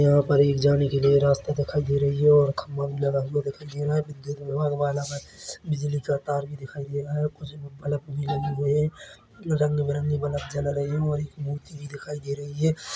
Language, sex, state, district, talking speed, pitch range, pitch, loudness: Hindi, male, Chhattisgarh, Bilaspur, 230 wpm, 140-150 Hz, 145 Hz, -25 LUFS